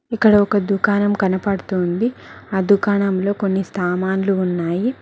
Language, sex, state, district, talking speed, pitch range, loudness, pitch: Telugu, female, Telangana, Mahabubabad, 105 wpm, 190-205 Hz, -18 LUFS, 200 Hz